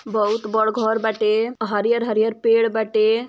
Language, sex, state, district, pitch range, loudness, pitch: Bhojpuri, female, Uttar Pradesh, Ghazipur, 215-225 Hz, -20 LUFS, 220 Hz